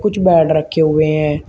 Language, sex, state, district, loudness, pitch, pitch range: Hindi, male, Uttar Pradesh, Shamli, -14 LUFS, 155 Hz, 155-165 Hz